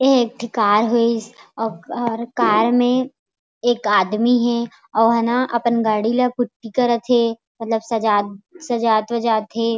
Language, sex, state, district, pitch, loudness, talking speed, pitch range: Chhattisgarhi, female, Chhattisgarh, Raigarh, 235 Hz, -19 LUFS, 165 wpm, 225-240 Hz